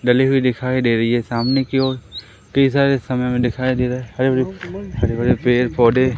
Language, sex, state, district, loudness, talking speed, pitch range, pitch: Hindi, male, Madhya Pradesh, Umaria, -18 LUFS, 225 wpm, 120-130 Hz, 125 Hz